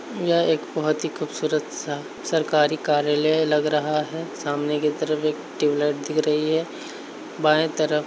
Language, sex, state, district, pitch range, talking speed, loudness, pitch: Hindi, male, Uttar Pradesh, Hamirpur, 150-155 Hz, 155 wpm, -23 LUFS, 155 Hz